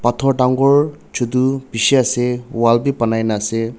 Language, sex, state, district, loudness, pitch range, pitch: Nagamese, male, Nagaland, Dimapur, -16 LUFS, 115-135 Hz, 125 Hz